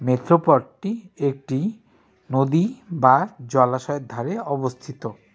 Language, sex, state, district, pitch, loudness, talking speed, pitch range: Bengali, male, West Bengal, Darjeeling, 140 Hz, -22 LUFS, 90 wpm, 125-170 Hz